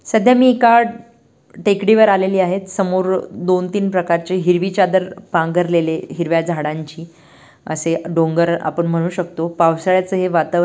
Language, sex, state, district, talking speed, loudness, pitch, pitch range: Marathi, female, Maharashtra, Dhule, 130 wpm, -16 LUFS, 180 Hz, 165-190 Hz